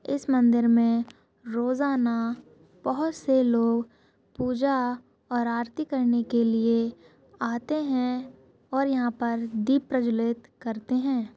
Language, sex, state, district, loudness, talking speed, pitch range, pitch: Hindi, female, Goa, North and South Goa, -26 LUFS, 115 wpm, 235-260 Hz, 240 Hz